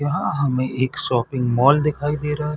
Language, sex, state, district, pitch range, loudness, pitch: Hindi, male, Chhattisgarh, Bilaspur, 130-150 Hz, -20 LUFS, 140 Hz